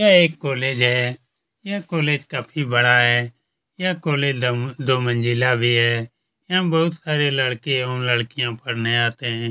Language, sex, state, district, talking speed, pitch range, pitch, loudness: Hindi, male, Chhattisgarh, Kabirdham, 150 wpm, 120-150 Hz, 125 Hz, -20 LUFS